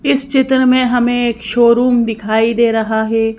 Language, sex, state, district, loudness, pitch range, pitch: Hindi, female, Madhya Pradesh, Bhopal, -13 LUFS, 225-250 Hz, 235 Hz